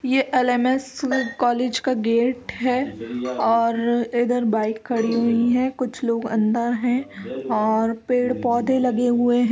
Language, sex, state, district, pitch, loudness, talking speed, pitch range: Hindi, female, Uttar Pradesh, Etah, 240 Hz, -21 LUFS, 140 wpm, 230-250 Hz